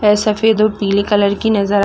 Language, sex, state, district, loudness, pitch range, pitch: Hindi, female, Chhattisgarh, Raigarh, -14 LUFS, 200-215 Hz, 210 Hz